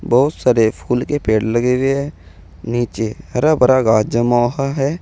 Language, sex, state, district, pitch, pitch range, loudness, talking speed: Hindi, male, Uttar Pradesh, Saharanpur, 120 Hz, 110-135 Hz, -16 LUFS, 180 wpm